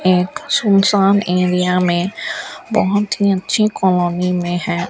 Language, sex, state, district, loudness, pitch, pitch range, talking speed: Hindi, female, Rajasthan, Bikaner, -16 LUFS, 185 Hz, 180-205 Hz, 125 wpm